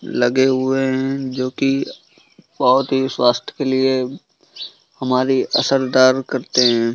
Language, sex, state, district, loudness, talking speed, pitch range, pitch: Hindi, male, Bihar, East Champaran, -17 LUFS, 120 wpm, 130-135 Hz, 130 Hz